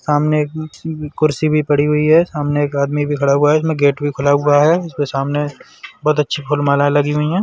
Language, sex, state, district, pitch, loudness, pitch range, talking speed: Bundeli, male, Uttar Pradesh, Budaun, 150 Hz, -16 LUFS, 145-155 Hz, 240 wpm